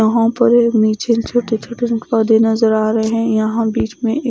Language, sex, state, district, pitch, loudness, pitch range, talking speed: Hindi, female, Odisha, Khordha, 230 Hz, -15 LUFS, 220-235 Hz, 225 wpm